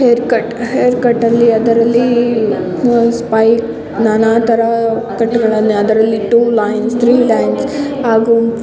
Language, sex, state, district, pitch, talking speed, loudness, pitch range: Kannada, female, Karnataka, Chamarajanagar, 230 Hz, 70 wpm, -12 LUFS, 225-235 Hz